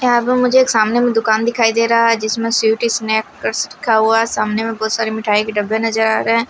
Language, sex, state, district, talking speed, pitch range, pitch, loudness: Hindi, female, Himachal Pradesh, Shimla, 250 wpm, 220-230 Hz, 225 Hz, -15 LUFS